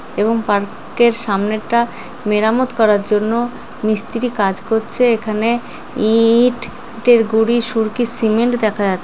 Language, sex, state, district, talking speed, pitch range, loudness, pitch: Bengali, female, West Bengal, Jalpaiguri, 120 wpm, 215-235 Hz, -16 LUFS, 225 Hz